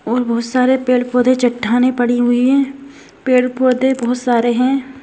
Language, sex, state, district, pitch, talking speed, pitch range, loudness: Hindi, female, Maharashtra, Aurangabad, 250 Hz, 165 wpm, 245-260 Hz, -15 LUFS